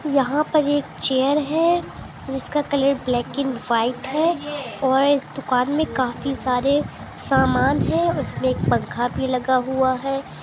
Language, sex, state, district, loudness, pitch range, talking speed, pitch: Hindi, female, Andhra Pradesh, Chittoor, -21 LUFS, 260-290 Hz, 150 wpm, 275 Hz